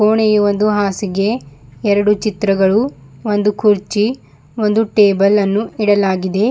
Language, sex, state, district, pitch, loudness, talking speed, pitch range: Kannada, female, Karnataka, Bidar, 205 Hz, -15 LUFS, 100 wpm, 195-215 Hz